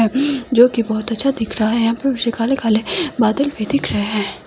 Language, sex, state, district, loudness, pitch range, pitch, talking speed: Hindi, female, Himachal Pradesh, Shimla, -17 LUFS, 220-270 Hz, 230 Hz, 230 wpm